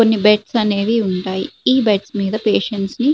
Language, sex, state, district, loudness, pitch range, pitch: Telugu, female, Andhra Pradesh, Srikakulam, -17 LUFS, 200-225 Hz, 210 Hz